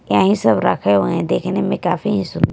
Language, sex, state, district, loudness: Hindi, female, Punjab, Kapurthala, -17 LUFS